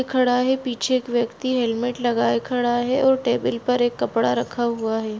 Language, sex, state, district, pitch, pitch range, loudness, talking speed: Hindi, female, Bihar, Bhagalpur, 245 Hz, 235-255 Hz, -21 LUFS, 195 wpm